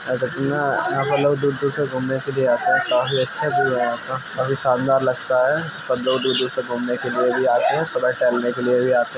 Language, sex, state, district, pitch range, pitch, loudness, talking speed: Hindi, male, Uttar Pradesh, Jalaun, 125-140 Hz, 130 Hz, -20 LUFS, 250 wpm